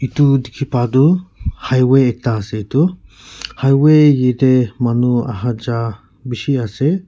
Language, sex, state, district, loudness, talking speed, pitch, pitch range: Nagamese, male, Nagaland, Kohima, -15 LUFS, 120 wpm, 130 Hz, 120-140 Hz